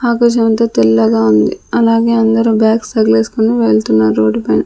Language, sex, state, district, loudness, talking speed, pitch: Telugu, female, Andhra Pradesh, Sri Satya Sai, -12 LUFS, 130 wpm, 220 Hz